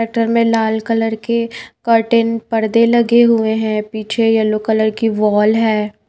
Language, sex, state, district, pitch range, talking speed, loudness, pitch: Hindi, female, Bihar, Kaimur, 220-230 Hz, 160 wpm, -15 LUFS, 225 Hz